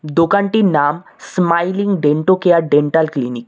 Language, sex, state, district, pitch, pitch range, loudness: Bengali, male, West Bengal, Cooch Behar, 165 Hz, 150-185 Hz, -15 LUFS